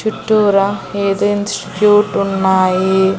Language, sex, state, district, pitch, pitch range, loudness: Telugu, female, Andhra Pradesh, Annamaya, 200 Hz, 190-210 Hz, -14 LUFS